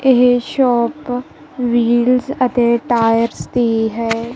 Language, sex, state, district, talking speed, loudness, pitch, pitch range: Punjabi, female, Punjab, Kapurthala, 95 wpm, -16 LUFS, 240 Hz, 235-250 Hz